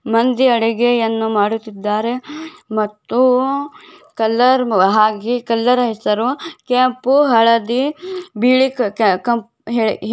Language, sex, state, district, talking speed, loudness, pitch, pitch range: Kannada, female, Karnataka, Bijapur, 70 wpm, -16 LUFS, 240 Hz, 220-260 Hz